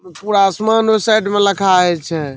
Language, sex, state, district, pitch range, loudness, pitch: Maithili, male, Bihar, Saharsa, 180-215 Hz, -14 LUFS, 200 Hz